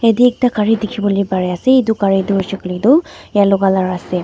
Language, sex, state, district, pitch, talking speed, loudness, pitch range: Nagamese, female, Nagaland, Dimapur, 200 Hz, 225 wpm, -15 LUFS, 190-230 Hz